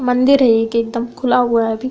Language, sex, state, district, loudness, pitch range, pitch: Hindi, female, Uttar Pradesh, Budaun, -15 LUFS, 230-250 Hz, 240 Hz